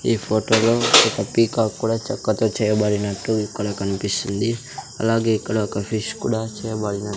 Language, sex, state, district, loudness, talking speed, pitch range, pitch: Telugu, male, Andhra Pradesh, Sri Satya Sai, -20 LUFS, 135 wpm, 105-115 Hz, 110 Hz